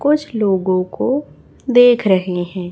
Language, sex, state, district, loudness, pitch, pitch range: Hindi, female, Chhattisgarh, Raipur, -16 LUFS, 205 Hz, 185-250 Hz